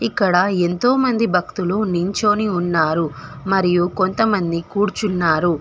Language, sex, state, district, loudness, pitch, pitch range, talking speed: Telugu, female, Telangana, Hyderabad, -18 LUFS, 185 Hz, 175-210 Hz, 85 wpm